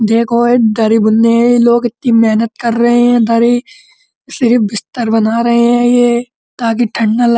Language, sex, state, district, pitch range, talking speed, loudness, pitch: Hindi, male, Uttar Pradesh, Muzaffarnagar, 230-240 Hz, 195 wpm, -11 LUFS, 235 Hz